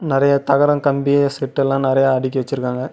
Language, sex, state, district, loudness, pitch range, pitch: Tamil, male, Tamil Nadu, Namakkal, -17 LUFS, 130-140 Hz, 135 Hz